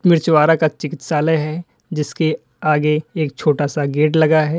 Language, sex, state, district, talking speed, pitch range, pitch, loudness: Hindi, male, Uttar Pradesh, Lalitpur, 155 wpm, 150-160 Hz, 155 Hz, -17 LUFS